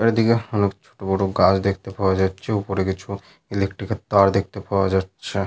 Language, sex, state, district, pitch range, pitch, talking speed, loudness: Bengali, male, Jharkhand, Sahebganj, 95-100 Hz, 100 Hz, 185 wpm, -21 LUFS